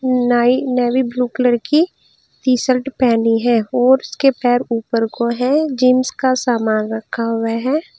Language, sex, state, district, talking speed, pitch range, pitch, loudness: Hindi, female, Uttar Pradesh, Saharanpur, 165 wpm, 235-260 Hz, 250 Hz, -16 LUFS